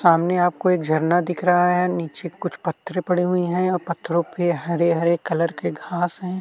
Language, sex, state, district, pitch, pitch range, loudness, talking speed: Hindi, male, Uttarakhand, Tehri Garhwal, 175 Hz, 170-180 Hz, -21 LUFS, 205 wpm